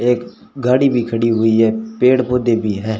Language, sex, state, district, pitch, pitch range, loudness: Hindi, male, Rajasthan, Bikaner, 115 Hz, 110-125 Hz, -16 LUFS